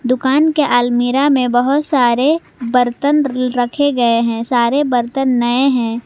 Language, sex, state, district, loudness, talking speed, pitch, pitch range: Hindi, female, Jharkhand, Garhwa, -14 LUFS, 140 wpm, 255 Hz, 240-280 Hz